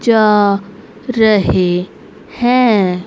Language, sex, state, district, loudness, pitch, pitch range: Hindi, female, Haryana, Rohtak, -13 LUFS, 210 Hz, 190-225 Hz